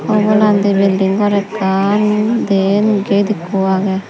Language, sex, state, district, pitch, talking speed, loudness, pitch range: Chakma, female, Tripura, Dhalai, 200 Hz, 115 wpm, -14 LUFS, 195-210 Hz